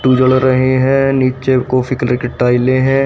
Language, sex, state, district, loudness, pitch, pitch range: Hindi, male, Haryana, Rohtak, -13 LUFS, 130 Hz, 125-130 Hz